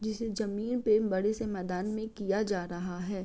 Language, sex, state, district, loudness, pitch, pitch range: Hindi, female, Uttar Pradesh, Gorakhpur, -32 LUFS, 210 Hz, 190-220 Hz